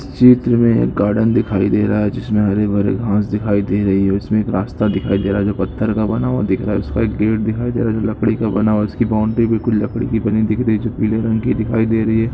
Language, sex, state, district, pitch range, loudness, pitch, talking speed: Hindi, male, Jharkhand, Sahebganj, 105-115 Hz, -16 LUFS, 110 Hz, 300 wpm